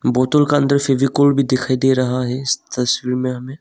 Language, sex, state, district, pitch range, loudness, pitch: Hindi, male, Arunachal Pradesh, Longding, 125-140 Hz, -17 LUFS, 130 Hz